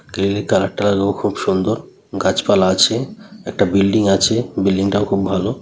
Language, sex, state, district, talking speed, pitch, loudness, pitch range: Bengali, male, West Bengal, North 24 Parganas, 170 wpm, 100 Hz, -17 LUFS, 95-100 Hz